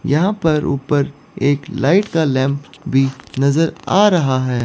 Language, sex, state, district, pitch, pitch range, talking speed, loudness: Hindi, female, Chandigarh, Chandigarh, 140 Hz, 135-165 Hz, 155 wpm, -17 LUFS